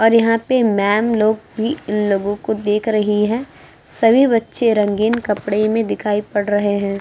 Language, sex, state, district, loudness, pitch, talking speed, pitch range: Hindi, female, Uttar Pradesh, Muzaffarnagar, -17 LUFS, 215 Hz, 180 wpm, 205-225 Hz